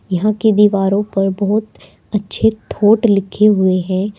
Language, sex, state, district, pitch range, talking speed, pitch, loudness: Hindi, female, Uttar Pradesh, Saharanpur, 195-215 Hz, 145 wpm, 205 Hz, -15 LUFS